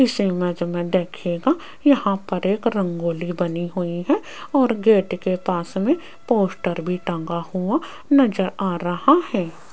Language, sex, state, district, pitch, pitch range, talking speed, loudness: Hindi, female, Rajasthan, Jaipur, 185 Hz, 175-225 Hz, 150 wpm, -21 LUFS